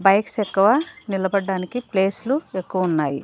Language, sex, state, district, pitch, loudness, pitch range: Telugu, female, Andhra Pradesh, Sri Satya Sai, 195 Hz, -21 LUFS, 190-230 Hz